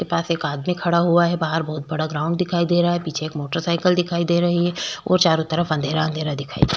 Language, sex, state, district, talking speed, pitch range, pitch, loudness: Hindi, female, Chhattisgarh, Korba, 285 wpm, 155-175 Hz, 165 Hz, -21 LUFS